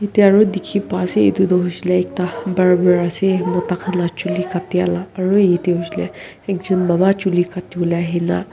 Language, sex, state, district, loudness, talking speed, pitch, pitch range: Nagamese, female, Nagaland, Kohima, -17 LUFS, 190 wpm, 180 Hz, 175-190 Hz